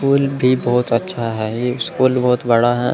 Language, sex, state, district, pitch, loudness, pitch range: Hindi, male, Chandigarh, Chandigarh, 125 Hz, -17 LUFS, 120-130 Hz